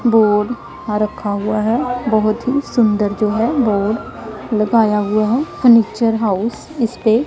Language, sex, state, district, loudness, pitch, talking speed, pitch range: Hindi, female, Punjab, Pathankot, -16 LUFS, 220 Hz, 150 wpm, 210-235 Hz